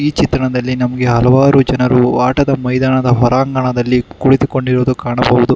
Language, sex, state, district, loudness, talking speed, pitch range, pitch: Kannada, male, Karnataka, Bangalore, -13 LUFS, 110 wpm, 125-130 Hz, 125 Hz